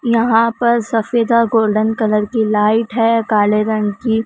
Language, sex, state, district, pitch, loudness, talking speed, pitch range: Hindi, female, Maharashtra, Mumbai Suburban, 225 Hz, -15 LUFS, 155 wpm, 215-230 Hz